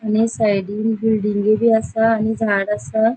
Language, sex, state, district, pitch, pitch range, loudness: Konkani, female, Goa, North and South Goa, 220 Hz, 210-225 Hz, -18 LUFS